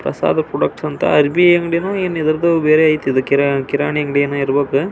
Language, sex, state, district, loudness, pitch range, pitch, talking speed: Kannada, male, Karnataka, Belgaum, -15 LUFS, 140-170 Hz, 150 Hz, 185 wpm